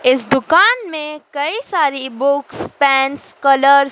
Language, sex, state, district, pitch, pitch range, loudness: Hindi, female, Madhya Pradesh, Dhar, 280 Hz, 270-310 Hz, -15 LUFS